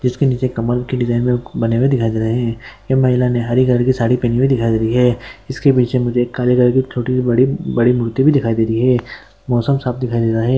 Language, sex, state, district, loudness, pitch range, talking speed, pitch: Hindi, male, Andhra Pradesh, Guntur, -16 LUFS, 120-130 Hz, 225 wpm, 125 Hz